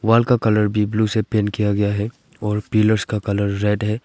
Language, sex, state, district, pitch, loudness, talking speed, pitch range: Hindi, male, Arunachal Pradesh, Longding, 105 Hz, -19 LUFS, 235 wpm, 105-110 Hz